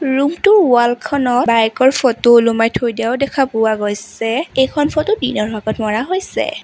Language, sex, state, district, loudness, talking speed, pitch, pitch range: Assamese, female, Assam, Sonitpur, -15 LUFS, 170 wpm, 245 Hz, 225-275 Hz